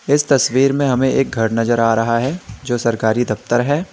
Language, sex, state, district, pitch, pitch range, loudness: Hindi, male, Uttar Pradesh, Lalitpur, 125 Hz, 115-135 Hz, -16 LUFS